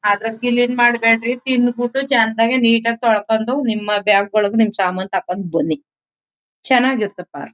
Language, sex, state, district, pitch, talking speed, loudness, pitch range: Kannada, female, Karnataka, Mysore, 225 Hz, 135 wpm, -17 LUFS, 205-245 Hz